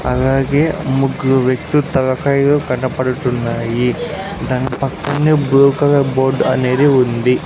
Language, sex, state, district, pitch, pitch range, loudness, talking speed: Telugu, male, Andhra Pradesh, Sri Satya Sai, 135 Hz, 130-145 Hz, -15 LUFS, 95 wpm